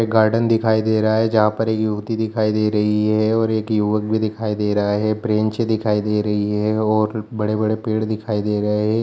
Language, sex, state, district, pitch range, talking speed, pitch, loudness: Hindi, male, Bihar, Jamui, 105-110 Hz, 205 wpm, 110 Hz, -19 LUFS